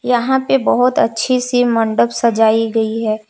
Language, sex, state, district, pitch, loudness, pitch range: Hindi, female, Jharkhand, Palamu, 235 Hz, -15 LUFS, 225-250 Hz